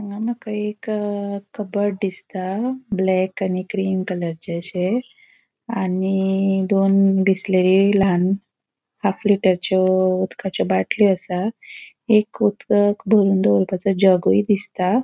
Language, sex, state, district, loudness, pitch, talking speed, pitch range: Konkani, female, Goa, North and South Goa, -20 LUFS, 195 Hz, 100 wpm, 185-210 Hz